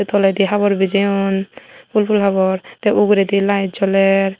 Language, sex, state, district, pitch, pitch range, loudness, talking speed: Chakma, female, Tripura, West Tripura, 195 Hz, 195-205 Hz, -16 LUFS, 135 wpm